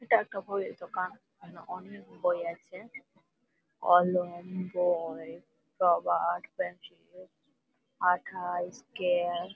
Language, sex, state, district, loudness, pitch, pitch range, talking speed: Bengali, female, West Bengal, Malda, -31 LUFS, 180 Hz, 175-185 Hz, 95 wpm